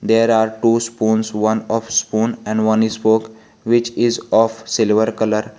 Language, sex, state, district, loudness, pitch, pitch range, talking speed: English, male, Jharkhand, Garhwa, -17 LUFS, 110 Hz, 110-115 Hz, 170 wpm